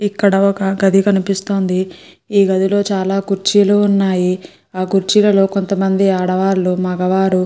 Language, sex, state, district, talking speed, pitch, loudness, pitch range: Telugu, female, Andhra Pradesh, Guntur, 145 wpm, 195 Hz, -15 LUFS, 185-200 Hz